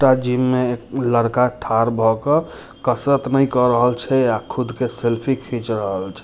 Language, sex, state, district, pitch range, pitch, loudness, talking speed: Hindi, male, Bihar, Muzaffarpur, 115-130 Hz, 125 Hz, -19 LUFS, 185 wpm